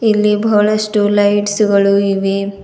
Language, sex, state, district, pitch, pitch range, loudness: Kannada, female, Karnataka, Bidar, 205 Hz, 200-210 Hz, -13 LUFS